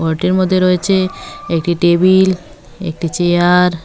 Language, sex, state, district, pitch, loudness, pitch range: Bengali, female, West Bengal, Cooch Behar, 180 Hz, -14 LUFS, 170-185 Hz